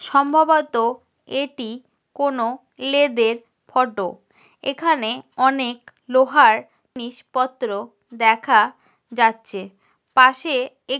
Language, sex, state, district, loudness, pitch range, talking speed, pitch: Bengali, female, West Bengal, North 24 Parganas, -19 LUFS, 230-275 Hz, 80 wpm, 255 Hz